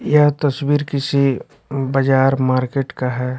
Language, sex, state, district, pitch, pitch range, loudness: Hindi, male, Bihar, West Champaran, 135 Hz, 130-140 Hz, -18 LUFS